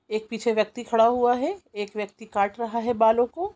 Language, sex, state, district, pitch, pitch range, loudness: Hindi, female, Bihar, Jamui, 230 Hz, 215-245 Hz, -24 LUFS